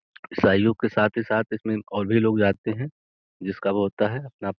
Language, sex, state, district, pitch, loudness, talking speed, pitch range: Hindi, male, Uttar Pradesh, Gorakhpur, 110 Hz, -24 LUFS, 220 wpm, 100-115 Hz